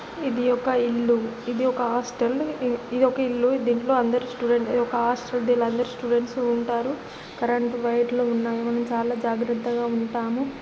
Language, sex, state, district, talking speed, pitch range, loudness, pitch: Telugu, female, Telangana, Nalgonda, 135 wpm, 235-245 Hz, -24 LUFS, 240 Hz